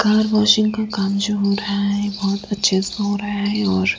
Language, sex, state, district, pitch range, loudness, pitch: Hindi, female, Gujarat, Valsad, 200-210 Hz, -19 LUFS, 205 Hz